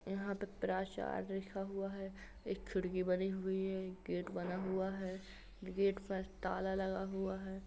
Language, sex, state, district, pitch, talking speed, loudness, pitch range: Hindi, female, Uttar Pradesh, Hamirpur, 190 Hz, 170 wpm, -41 LUFS, 190-195 Hz